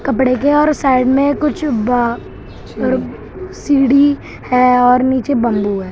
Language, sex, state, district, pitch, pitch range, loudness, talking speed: Hindi, male, Maharashtra, Mumbai Suburban, 260 Hz, 245-285 Hz, -14 LUFS, 140 wpm